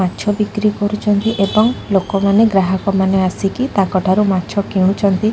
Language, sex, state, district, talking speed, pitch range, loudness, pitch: Odia, female, Odisha, Khordha, 125 wpm, 190-210 Hz, -15 LUFS, 200 Hz